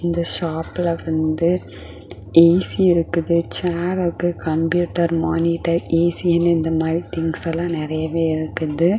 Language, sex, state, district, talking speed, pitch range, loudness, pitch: Tamil, female, Tamil Nadu, Kanyakumari, 105 wpm, 160-170 Hz, -19 LUFS, 165 Hz